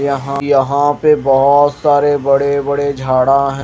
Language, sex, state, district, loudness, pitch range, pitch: Hindi, male, Himachal Pradesh, Shimla, -13 LUFS, 135-145 Hz, 140 Hz